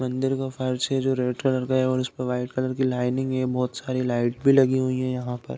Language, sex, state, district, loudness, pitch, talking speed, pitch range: Hindi, male, Uttar Pradesh, Deoria, -24 LUFS, 130 Hz, 270 wpm, 125-130 Hz